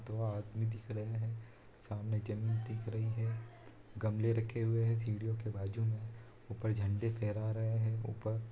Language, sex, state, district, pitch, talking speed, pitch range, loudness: Hindi, male, Bihar, Saran, 110 Hz, 175 wpm, 110-115 Hz, -38 LUFS